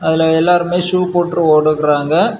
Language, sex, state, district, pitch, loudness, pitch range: Tamil, male, Tamil Nadu, Kanyakumari, 165 Hz, -13 LUFS, 155-175 Hz